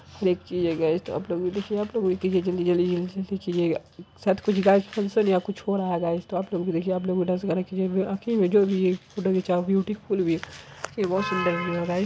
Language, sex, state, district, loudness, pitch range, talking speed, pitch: Angika, female, Bihar, Araria, -25 LUFS, 175-195 Hz, 225 wpm, 185 Hz